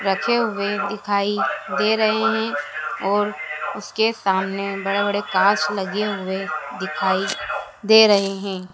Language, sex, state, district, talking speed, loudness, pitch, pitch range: Hindi, female, Madhya Pradesh, Dhar, 125 wpm, -21 LUFS, 200 Hz, 190-205 Hz